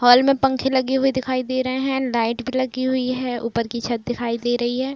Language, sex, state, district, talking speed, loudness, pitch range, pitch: Hindi, female, Uttar Pradesh, Jalaun, 255 wpm, -21 LUFS, 240-260 Hz, 255 Hz